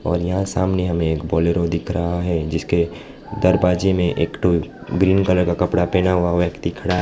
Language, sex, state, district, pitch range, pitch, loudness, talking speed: Hindi, male, West Bengal, Alipurduar, 85-90 Hz, 90 Hz, -19 LUFS, 190 wpm